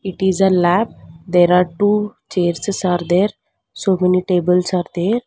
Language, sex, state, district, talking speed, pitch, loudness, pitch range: English, female, Karnataka, Bangalore, 170 wpm, 180 Hz, -17 LUFS, 180-200 Hz